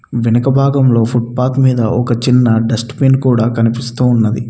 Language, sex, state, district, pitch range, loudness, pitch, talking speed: Telugu, male, Telangana, Mahabubabad, 115-130 Hz, -13 LUFS, 120 Hz, 145 wpm